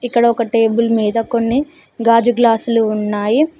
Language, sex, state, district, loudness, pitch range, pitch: Telugu, female, Telangana, Mahabubabad, -15 LUFS, 225-235 Hz, 230 Hz